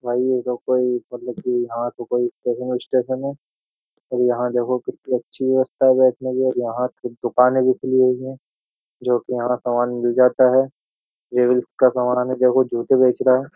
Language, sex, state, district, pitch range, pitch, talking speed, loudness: Hindi, male, Uttar Pradesh, Jyotiba Phule Nagar, 125-130 Hz, 125 Hz, 185 wpm, -20 LUFS